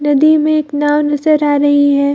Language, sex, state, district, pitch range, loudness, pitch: Hindi, female, Bihar, Gaya, 285-305 Hz, -12 LUFS, 295 Hz